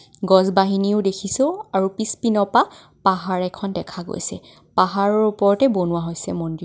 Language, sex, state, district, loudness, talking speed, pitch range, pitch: Assamese, female, Assam, Kamrup Metropolitan, -20 LUFS, 145 wpm, 185-210 Hz, 195 Hz